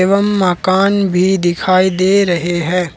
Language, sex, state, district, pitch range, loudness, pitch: Hindi, male, Jharkhand, Ranchi, 180-195 Hz, -13 LUFS, 185 Hz